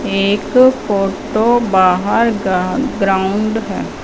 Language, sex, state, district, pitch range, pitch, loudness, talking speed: Hindi, female, Punjab, Fazilka, 195-225 Hz, 200 Hz, -14 LUFS, 90 wpm